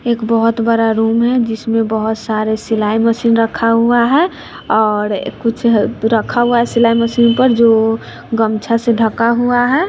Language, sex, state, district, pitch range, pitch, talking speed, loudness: Hindi, male, Bihar, West Champaran, 220-235 Hz, 230 Hz, 165 wpm, -14 LUFS